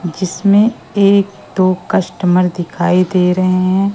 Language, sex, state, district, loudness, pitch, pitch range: Hindi, female, Madhya Pradesh, Katni, -14 LUFS, 185 Hz, 180-200 Hz